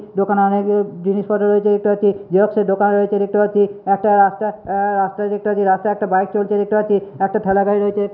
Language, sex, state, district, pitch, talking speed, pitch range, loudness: Bengali, male, West Bengal, Purulia, 205 Hz, 205 wpm, 200-205 Hz, -17 LUFS